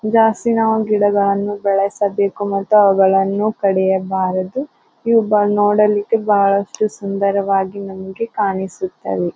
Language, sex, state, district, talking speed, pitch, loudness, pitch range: Kannada, female, Karnataka, Bijapur, 95 wpm, 200 Hz, -16 LUFS, 195-210 Hz